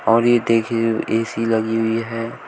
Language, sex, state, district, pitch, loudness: Hindi, male, Uttar Pradesh, Shamli, 115 Hz, -19 LUFS